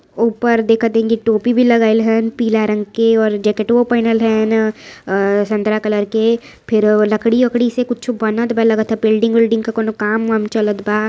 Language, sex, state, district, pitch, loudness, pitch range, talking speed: Hindi, female, Uttar Pradesh, Varanasi, 225 Hz, -15 LUFS, 215-230 Hz, 185 wpm